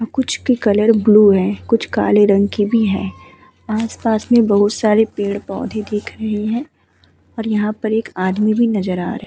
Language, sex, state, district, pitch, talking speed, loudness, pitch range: Hindi, female, Uttar Pradesh, Muzaffarnagar, 215 Hz, 195 wpm, -16 LUFS, 205-225 Hz